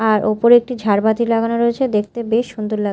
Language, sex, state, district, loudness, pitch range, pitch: Bengali, female, Odisha, Malkangiri, -16 LUFS, 215-235 Hz, 225 Hz